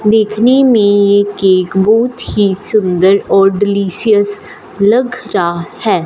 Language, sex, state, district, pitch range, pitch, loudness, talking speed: Hindi, female, Punjab, Fazilka, 195-220 Hz, 205 Hz, -11 LUFS, 120 wpm